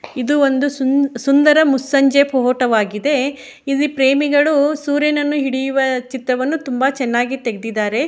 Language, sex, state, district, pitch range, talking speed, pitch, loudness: Kannada, female, Karnataka, Shimoga, 255-285 Hz, 110 wpm, 270 Hz, -16 LUFS